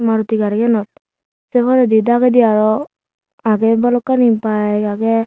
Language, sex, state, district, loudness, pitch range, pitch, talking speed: Chakma, female, Tripura, Unakoti, -14 LUFS, 215-245 Hz, 225 Hz, 115 wpm